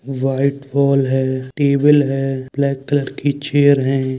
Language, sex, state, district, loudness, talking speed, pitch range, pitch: Hindi, male, Uttar Pradesh, Budaun, -17 LUFS, 145 wpm, 135-140 Hz, 140 Hz